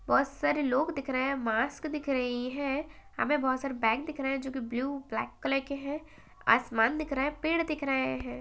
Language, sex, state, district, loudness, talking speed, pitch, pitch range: Hindi, female, Uttar Pradesh, Etah, -30 LUFS, 220 wpm, 270 Hz, 250-295 Hz